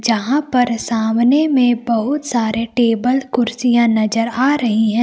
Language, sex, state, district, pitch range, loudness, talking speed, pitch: Hindi, female, Jharkhand, Palamu, 230-255 Hz, -16 LUFS, 145 wpm, 240 Hz